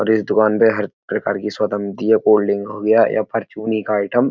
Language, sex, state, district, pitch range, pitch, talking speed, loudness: Hindi, male, Uttar Pradesh, Etah, 105-110 Hz, 110 Hz, 265 wpm, -18 LUFS